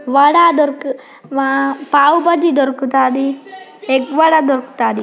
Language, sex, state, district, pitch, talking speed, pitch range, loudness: Telugu, female, Telangana, Karimnagar, 275 Hz, 120 wpm, 265-300 Hz, -14 LUFS